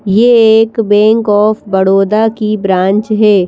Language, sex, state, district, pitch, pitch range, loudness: Hindi, female, Madhya Pradesh, Bhopal, 215 Hz, 195-220 Hz, -10 LUFS